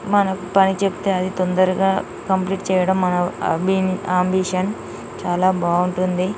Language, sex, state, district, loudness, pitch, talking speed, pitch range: Telugu, female, Telangana, Nalgonda, -19 LUFS, 185 Hz, 120 wpm, 180-190 Hz